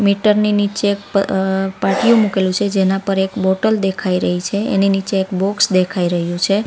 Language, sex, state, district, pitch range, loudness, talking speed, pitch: Gujarati, female, Gujarat, Valsad, 190-205 Hz, -16 LUFS, 205 wpm, 195 Hz